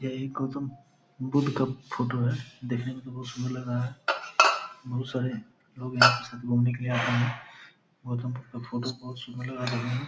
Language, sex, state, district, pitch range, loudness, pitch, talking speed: Hindi, male, Bihar, Purnia, 125-130 Hz, -28 LUFS, 125 Hz, 220 wpm